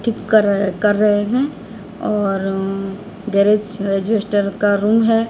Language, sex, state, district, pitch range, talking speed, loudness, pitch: Hindi, female, Odisha, Sambalpur, 200-220 Hz, 125 wpm, -17 LUFS, 205 Hz